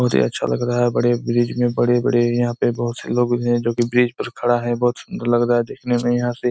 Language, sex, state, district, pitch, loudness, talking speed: Hindi, male, Chhattisgarh, Raigarh, 120 Hz, -19 LUFS, 295 wpm